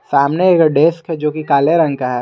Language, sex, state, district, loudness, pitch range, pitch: Hindi, male, Jharkhand, Garhwa, -14 LUFS, 140-165 Hz, 155 Hz